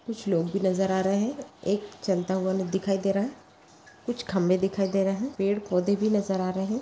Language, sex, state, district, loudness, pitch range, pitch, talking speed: Magahi, female, Bihar, Gaya, -27 LUFS, 190-210 Hz, 195 Hz, 240 wpm